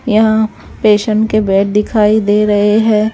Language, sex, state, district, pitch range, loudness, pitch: Hindi, female, Bihar, West Champaran, 210-220 Hz, -12 LUFS, 215 Hz